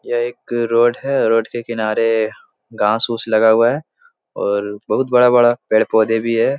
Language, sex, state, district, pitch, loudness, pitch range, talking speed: Hindi, male, Bihar, Jahanabad, 115 Hz, -16 LUFS, 110-120 Hz, 155 wpm